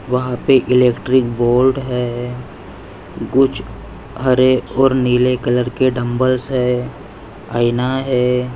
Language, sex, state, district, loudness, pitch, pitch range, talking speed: Hindi, male, Maharashtra, Chandrapur, -16 LUFS, 125 Hz, 120-130 Hz, 105 wpm